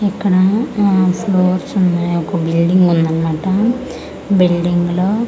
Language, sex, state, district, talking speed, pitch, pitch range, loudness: Telugu, female, Andhra Pradesh, Manyam, 100 wpm, 185 Hz, 175-200 Hz, -15 LUFS